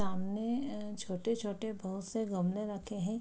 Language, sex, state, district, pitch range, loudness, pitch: Hindi, female, Bihar, Araria, 195-220 Hz, -37 LUFS, 210 Hz